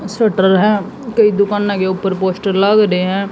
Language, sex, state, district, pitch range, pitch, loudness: Hindi, female, Haryana, Jhajjar, 190-210 Hz, 200 Hz, -14 LUFS